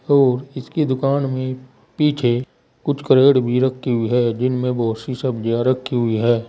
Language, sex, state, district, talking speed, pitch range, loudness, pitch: Hindi, male, Uttar Pradesh, Saharanpur, 165 wpm, 120-135 Hz, -19 LUFS, 130 Hz